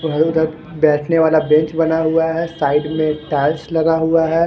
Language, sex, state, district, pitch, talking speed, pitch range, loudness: Hindi, male, Haryana, Charkhi Dadri, 160 Hz, 160 wpm, 155-165 Hz, -16 LUFS